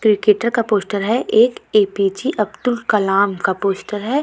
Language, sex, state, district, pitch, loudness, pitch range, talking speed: Hindi, female, Uttarakhand, Tehri Garhwal, 215 Hz, -17 LUFS, 200-250 Hz, 155 wpm